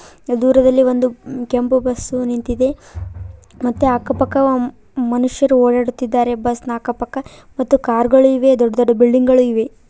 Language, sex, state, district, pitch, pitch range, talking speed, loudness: Kannada, female, Karnataka, Koppal, 250 Hz, 240-260 Hz, 125 wpm, -16 LUFS